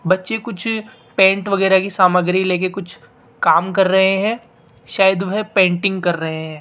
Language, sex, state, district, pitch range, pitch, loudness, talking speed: Hindi, female, Rajasthan, Jaipur, 180-200 Hz, 190 Hz, -16 LUFS, 165 wpm